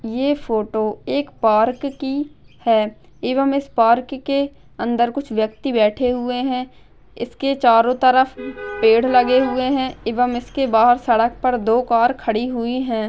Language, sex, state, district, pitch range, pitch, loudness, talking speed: Hindi, female, Maharashtra, Nagpur, 230-265 Hz, 245 Hz, -18 LUFS, 150 wpm